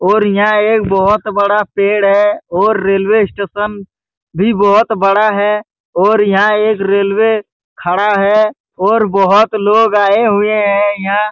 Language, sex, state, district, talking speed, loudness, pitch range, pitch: Hindi, male, Chhattisgarh, Bastar, 150 wpm, -12 LUFS, 200-215 Hz, 205 Hz